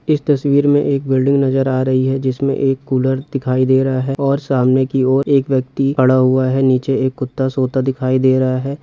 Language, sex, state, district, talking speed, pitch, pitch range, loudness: Hindi, male, Chhattisgarh, Rajnandgaon, 225 wpm, 130 Hz, 130-135 Hz, -15 LUFS